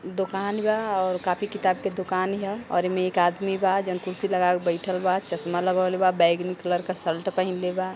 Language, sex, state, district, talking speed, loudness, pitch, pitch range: Bhojpuri, female, Uttar Pradesh, Gorakhpur, 205 wpm, -25 LUFS, 185 Hz, 180-195 Hz